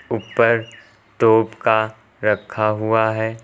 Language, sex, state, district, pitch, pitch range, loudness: Hindi, male, Uttar Pradesh, Lucknow, 110 Hz, 110-115 Hz, -19 LUFS